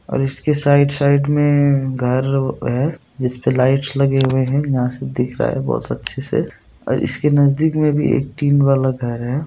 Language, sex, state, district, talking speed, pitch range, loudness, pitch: Hindi, male, Bihar, Supaul, 190 wpm, 130-145 Hz, -17 LUFS, 135 Hz